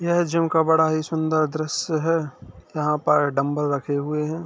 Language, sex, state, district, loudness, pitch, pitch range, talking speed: Hindi, male, Uttar Pradesh, Jalaun, -22 LUFS, 155 Hz, 145-160 Hz, 190 wpm